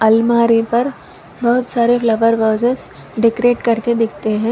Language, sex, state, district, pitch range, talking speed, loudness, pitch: Hindi, female, Telangana, Hyderabad, 225-240 Hz, 130 wpm, -15 LUFS, 230 Hz